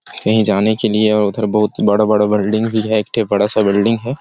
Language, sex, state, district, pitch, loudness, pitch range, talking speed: Hindi, male, Chhattisgarh, Sarguja, 105 Hz, -15 LUFS, 105-110 Hz, 270 wpm